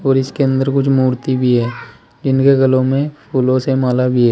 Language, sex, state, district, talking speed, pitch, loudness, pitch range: Hindi, male, Uttar Pradesh, Saharanpur, 210 wpm, 130 Hz, -15 LUFS, 125-135 Hz